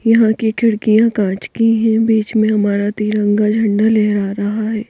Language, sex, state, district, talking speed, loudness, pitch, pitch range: Hindi, female, Madhya Pradesh, Bhopal, 185 wpm, -15 LUFS, 215 Hz, 210-225 Hz